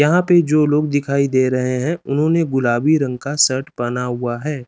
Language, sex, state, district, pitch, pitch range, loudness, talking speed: Hindi, male, Chandigarh, Chandigarh, 140 Hz, 125-150 Hz, -17 LUFS, 205 wpm